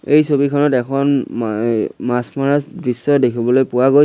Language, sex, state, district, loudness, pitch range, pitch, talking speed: Assamese, male, Assam, Sonitpur, -16 LUFS, 125-140 Hz, 135 Hz, 165 wpm